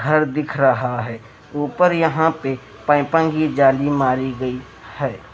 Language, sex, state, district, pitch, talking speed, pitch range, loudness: Hindi, male, Bihar, Patna, 140 Hz, 135 wpm, 130-155 Hz, -19 LUFS